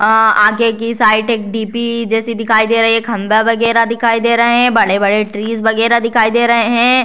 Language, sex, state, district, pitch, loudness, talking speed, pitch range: Hindi, female, Bihar, Purnia, 230 Hz, -12 LUFS, 205 wpm, 220-235 Hz